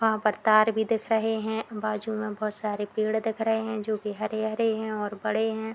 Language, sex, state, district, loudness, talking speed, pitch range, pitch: Hindi, female, Bihar, Madhepura, -27 LUFS, 230 wpm, 215-220 Hz, 220 Hz